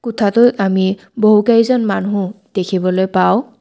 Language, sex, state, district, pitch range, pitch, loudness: Assamese, female, Assam, Kamrup Metropolitan, 190-230 Hz, 205 Hz, -14 LUFS